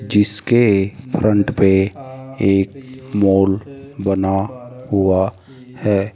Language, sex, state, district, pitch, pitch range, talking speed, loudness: Hindi, male, Rajasthan, Jaipur, 105 Hz, 95-130 Hz, 80 wpm, -17 LUFS